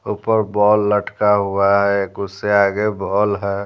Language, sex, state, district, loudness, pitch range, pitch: Hindi, male, Bihar, Patna, -17 LUFS, 100-105 Hz, 105 Hz